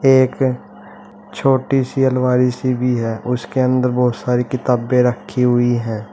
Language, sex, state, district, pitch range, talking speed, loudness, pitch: Hindi, male, Uttar Pradesh, Saharanpur, 125-130 Hz, 145 wpm, -17 LUFS, 125 Hz